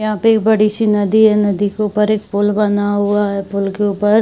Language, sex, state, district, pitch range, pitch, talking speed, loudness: Hindi, female, Bihar, Saharsa, 205-215 Hz, 210 Hz, 285 wpm, -15 LUFS